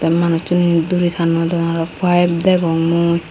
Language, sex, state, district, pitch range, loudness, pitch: Chakma, female, Tripura, Unakoti, 165-175 Hz, -15 LUFS, 170 Hz